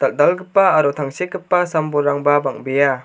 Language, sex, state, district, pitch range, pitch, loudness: Garo, male, Meghalaya, South Garo Hills, 140-180 Hz, 155 Hz, -17 LUFS